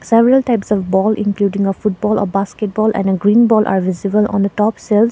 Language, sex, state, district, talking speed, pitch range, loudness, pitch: English, female, Sikkim, Gangtok, 225 wpm, 195-215 Hz, -15 LUFS, 210 Hz